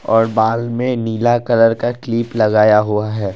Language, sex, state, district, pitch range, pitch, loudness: Hindi, male, Assam, Kamrup Metropolitan, 110-120 Hz, 115 Hz, -15 LUFS